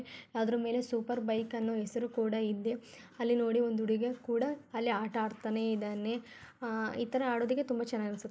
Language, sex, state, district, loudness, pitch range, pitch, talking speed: Kannada, female, Karnataka, Gulbarga, -34 LUFS, 220-240 Hz, 235 Hz, 165 wpm